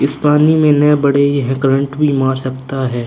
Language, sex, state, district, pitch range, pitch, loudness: Hindi, male, Chhattisgarh, Korba, 130-150 Hz, 140 Hz, -13 LUFS